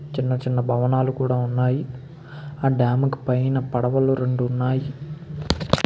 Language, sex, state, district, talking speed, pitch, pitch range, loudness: Telugu, male, Andhra Pradesh, Krishna, 135 wpm, 130 Hz, 125-140 Hz, -22 LUFS